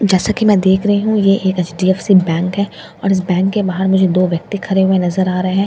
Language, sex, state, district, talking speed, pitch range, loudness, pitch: Hindi, female, Bihar, Katihar, 275 wpm, 185-200 Hz, -14 LUFS, 190 Hz